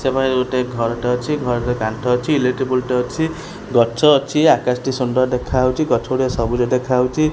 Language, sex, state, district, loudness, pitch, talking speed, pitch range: Odia, female, Odisha, Khordha, -18 LUFS, 125 Hz, 195 wpm, 125-135 Hz